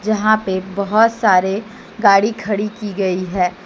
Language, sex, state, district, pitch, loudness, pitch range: Hindi, female, Jharkhand, Deoghar, 205 Hz, -17 LUFS, 190-215 Hz